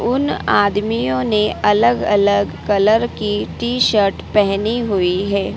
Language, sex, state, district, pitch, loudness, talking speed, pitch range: Hindi, female, Madhya Pradesh, Dhar, 210 Hz, -16 LUFS, 130 wpm, 200-225 Hz